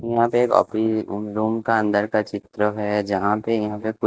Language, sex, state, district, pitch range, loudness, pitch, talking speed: Hindi, male, Himachal Pradesh, Shimla, 105-110 Hz, -22 LUFS, 110 Hz, 205 wpm